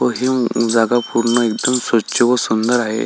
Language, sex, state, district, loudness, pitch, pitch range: Marathi, male, Maharashtra, Solapur, -16 LUFS, 120 Hz, 115-125 Hz